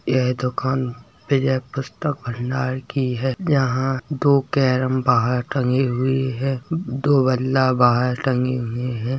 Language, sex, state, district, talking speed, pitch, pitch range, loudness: Hindi, male, Uttar Pradesh, Hamirpur, 130 wpm, 130 Hz, 125-135 Hz, -21 LUFS